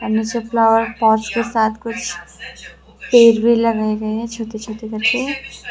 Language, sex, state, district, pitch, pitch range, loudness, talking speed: Hindi, female, Tripura, West Tripura, 225 Hz, 220-235 Hz, -17 LUFS, 125 wpm